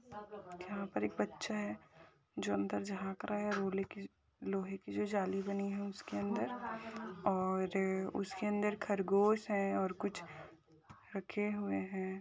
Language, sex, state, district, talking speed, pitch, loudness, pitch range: Hindi, female, Rajasthan, Churu, 145 wpm, 195 Hz, -38 LUFS, 165-205 Hz